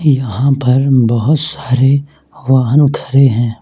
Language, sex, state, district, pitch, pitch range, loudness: Hindi, male, Mizoram, Aizawl, 135 Hz, 125-140 Hz, -12 LUFS